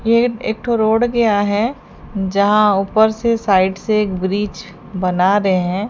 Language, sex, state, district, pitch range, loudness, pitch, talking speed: Hindi, female, Odisha, Sambalpur, 195-225 Hz, -16 LUFS, 210 Hz, 160 wpm